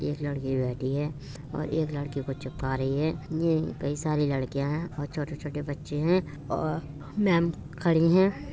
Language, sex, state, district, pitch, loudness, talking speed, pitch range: Hindi, male, Uttar Pradesh, Budaun, 145 Hz, -29 LUFS, 175 wpm, 140-160 Hz